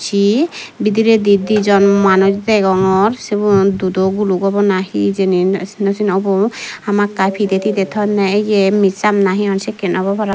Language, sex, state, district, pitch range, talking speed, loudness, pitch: Chakma, female, Tripura, Dhalai, 195-210 Hz, 160 wpm, -14 LUFS, 200 Hz